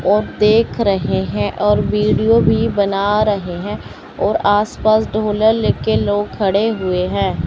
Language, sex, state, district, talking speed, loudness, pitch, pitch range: Hindi, male, Chandigarh, Chandigarh, 150 wpm, -16 LUFS, 205 Hz, 185-215 Hz